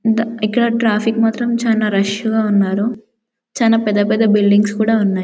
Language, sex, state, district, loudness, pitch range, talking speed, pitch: Telugu, female, Telangana, Karimnagar, -15 LUFS, 210-225 Hz, 160 wpm, 220 Hz